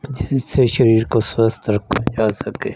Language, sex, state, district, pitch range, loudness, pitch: Hindi, male, Punjab, Fazilka, 110-130 Hz, -17 LUFS, 115 Hz